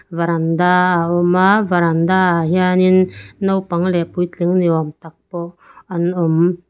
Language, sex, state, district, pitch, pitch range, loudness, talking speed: Mizo, female, Mizoram, Aizawl, 175 Hz, 170-185 Hz, -16 LUFS, 145 wpm